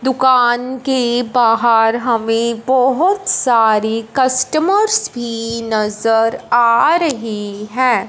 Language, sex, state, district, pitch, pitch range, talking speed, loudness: Hindi, male, Punjab, Fazilka, 240 Hz, 225-260 Hz, 90 wpm, -15 LUFS